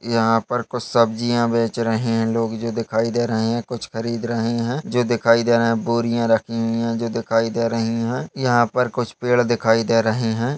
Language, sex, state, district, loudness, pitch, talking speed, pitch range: Hindi, male, Chhattisgarh, Jashpur, -20 LUFS, 115 Hz, 220 wpm, 115-120 Hz